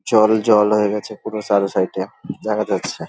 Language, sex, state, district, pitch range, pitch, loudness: Bengali, male, West Bengal, Dakshin Dinajpur, 105-110 Hz, 105 Hz, -19 LUFS